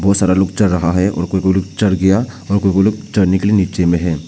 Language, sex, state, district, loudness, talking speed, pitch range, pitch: Hindi, male, Arunachal Pradesh, Papum Pare, -15 LUFS, 310 wpm, 90-100 Hz, 95 Hz